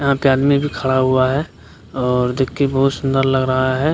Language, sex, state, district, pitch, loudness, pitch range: Hindi, male, Bihar, Kishanganj, 130 Hz, -17 LUFS, 130-140 Hz